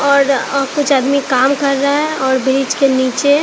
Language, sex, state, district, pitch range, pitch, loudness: Hindi, female, Bihar, Katihar, 265-280 Hz, 275 Hz, -14 LUFS